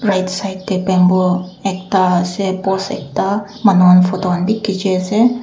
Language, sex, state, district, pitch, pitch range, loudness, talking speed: Nagamese, female, Nagaland, Dimapur, 190 Hz, 185-200 Hz, -15 LUFS, 155 wpm